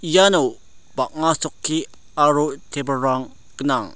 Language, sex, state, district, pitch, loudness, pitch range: Garo, male, Meghalaya, South Garo Hills, 155 Hz, -20 LUFS, 140-165 Hz